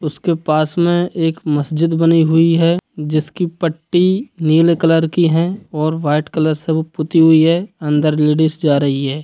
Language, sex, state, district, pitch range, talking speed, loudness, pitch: Hindi, male, Bihar, Sitamarhi, 155-170 Hz, 175 wpm, -15 LUFS, 160 Hz